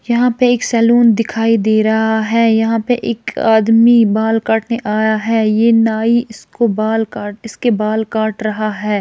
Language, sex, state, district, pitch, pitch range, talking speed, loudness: Hindi, female, Chhattisgarh, Bilaspur, 225 Hz, 220-230 Hz, 175 wpm, -14 LUFS